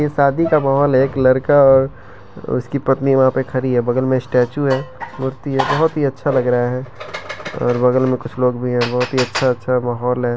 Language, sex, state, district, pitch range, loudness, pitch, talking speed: Maithili, male, Bihar, Begusarai, 125-135 Hz, -17 LUFS, 130 Hz, 230 wpm